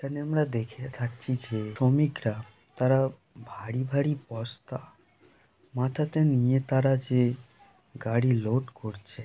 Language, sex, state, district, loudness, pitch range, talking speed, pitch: Bengali, male, West Bengal, North 24 Parganas, -28 LUFS, 115-135 Hz, 110 wpm, 130 Hz